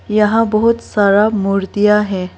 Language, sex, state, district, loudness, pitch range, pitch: Hindi, female, Arunachal Pradesh, Lower Dibang Valley, -14 LUFS, 200-215 Hz, 210 Hz